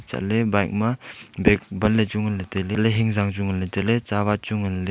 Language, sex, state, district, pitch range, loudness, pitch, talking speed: Wancho, male, Arunachal Pradesh, Longding, 100-110 Hz, -23 LUFS, 105 Hz, 210 wpm